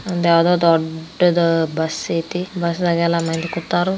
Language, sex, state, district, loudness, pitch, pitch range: Kannada, female, Karnataka, Belgaum, -18 LUFS, 170 Hz, 165-175 Hz